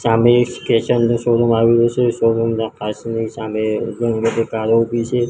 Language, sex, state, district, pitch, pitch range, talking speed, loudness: Gujarati, male, Gujarat, Gandhinagar, 115 Hz, 115-120 Hz, 170 wpm, -17 LUFS